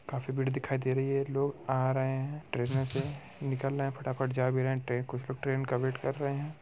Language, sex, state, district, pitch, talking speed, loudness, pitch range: Hindi, male, Bihar, Muzaffarpur, 135 Hz, 255 wpm, -32 LUFS, 130-140 Hz